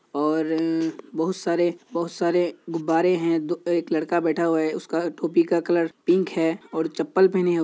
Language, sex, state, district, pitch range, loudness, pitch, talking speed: Hindi, male, Bihar, Kishanganj, 160-175 Hz, -23 LUFS, 170 Hz, 180 wpm